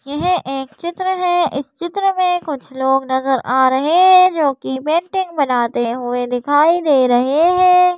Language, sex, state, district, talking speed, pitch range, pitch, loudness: Hindi, female, Madhya Pradesh, Bhopal, 165 wpm, 265-360 Hz, 290 Hz, -16 LUFS